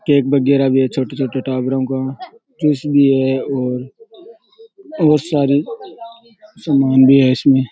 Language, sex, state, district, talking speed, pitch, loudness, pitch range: Rajasthani, male, Rajasthan, Churu, 150 wpm, 140 Hz, -15 LUFS, 130-220 Hz